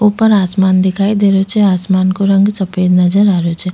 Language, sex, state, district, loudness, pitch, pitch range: Rajasthani, female, Rajasthan, Nagaur, -12 LUFS, 190 Hz, 185-200 Hz